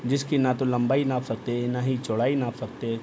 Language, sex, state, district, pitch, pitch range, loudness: Hindi, male, Bihar, Gopalganj, 125 Hz, 120-130 Hz, -26 LUFS